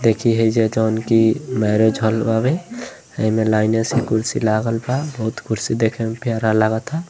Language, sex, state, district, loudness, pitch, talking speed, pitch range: Bhojpuri, male, Uttar Pradesh, Gorakhpur, -19 LUFS, 115 Hz, 170 wpm, 110-120 Hz